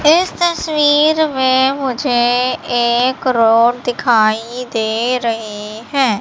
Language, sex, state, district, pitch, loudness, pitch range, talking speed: Hindi, female, Madhya Pradesh, Katni, 250 Hz, -15 LUFS, 230-275 Hz, 95 wpm